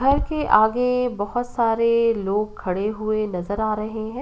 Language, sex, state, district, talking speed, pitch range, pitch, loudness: Hindi, female, Uttar Pradesh, Ghazipur, 170 wpm, 215-245 Hz, 220 Hz, -22 LUFS